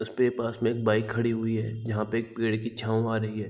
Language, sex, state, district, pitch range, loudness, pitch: Hindi, male, Chhattisgarh, Raigarh, 110-115 Hz, -28 LUFS, 115 Hz